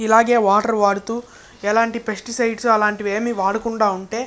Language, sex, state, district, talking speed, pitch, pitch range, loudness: Telugu, male, Andhra Pradesh, Chittoor, 110 wpm, 225 Hz, 205-230 Hz, -19 LUFS